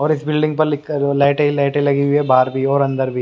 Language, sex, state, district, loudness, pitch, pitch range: Hindi, male, Haryana, Jhajjar, -16 LUFS, 140 Hz, 140-150 Hz